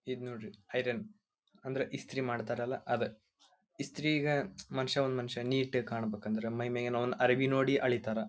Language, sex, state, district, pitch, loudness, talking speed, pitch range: Kannada, male, Karnataka, Belgaum, 125 Hz, -34 LUFS, 140 wpm, 120-135 Hz